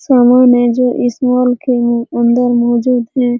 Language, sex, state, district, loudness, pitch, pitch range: Hindi, female, Bihar, Araria, -12 LUFS, 245 Hz, 240-250 Hz